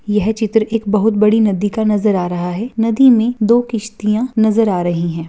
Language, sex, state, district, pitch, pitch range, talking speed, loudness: Hindi, female, Bihar, Bhagalpur, 215 Hz, 205-225 Hz, 215 wpm, -15 LUFS